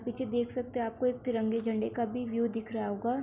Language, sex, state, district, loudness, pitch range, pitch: Hindi, female, Bihar, Bhagalpur, -33 LUFS, 225-245 Hz, 235 Hz